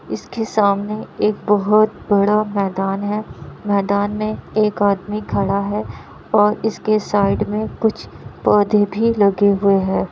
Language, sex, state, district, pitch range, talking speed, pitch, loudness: Hindi, female, Bihar, Kishanganj, 200-215 Hz, 140 wpm, 205 Hz, -18 LUFS